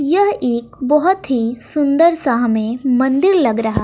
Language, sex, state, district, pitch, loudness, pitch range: Hindi, female, Bihar, West Champaran, 270 Hz, -15 LUFS, 235-325 Hz